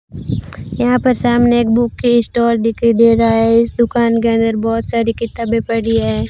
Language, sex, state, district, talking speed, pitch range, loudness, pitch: Hindi, female, Rajasthan, Bikaner, 180 wpm, 225-235 Hz, -14 LUFS, 230 Hz